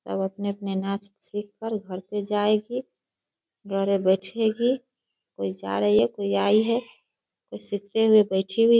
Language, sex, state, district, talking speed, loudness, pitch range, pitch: Hindi, female, Bihar, Begusarai, 155 wpm, -25 LUFS, 190-225 Hz, 205 Hz